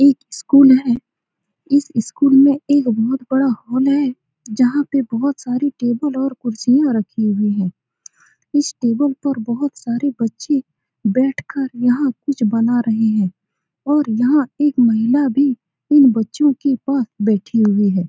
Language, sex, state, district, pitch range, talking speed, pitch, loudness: Hindi, female, Bihar, Saran, 230-280 Hz, 155 wpm, 255 Hz, -17 LUFS